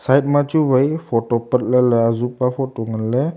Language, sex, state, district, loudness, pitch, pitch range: Wancho, male, Arunachal Pradesh, Longding, -18 LUFS, 125 Hz, 115-140 Hz